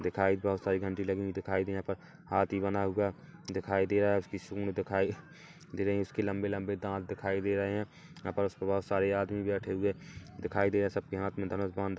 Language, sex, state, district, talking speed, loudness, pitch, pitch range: Hindi, male, Chhattisgarh, Kabirdham, 230 wpm, -33 LUFS, 100 Hz, 95-100 Hz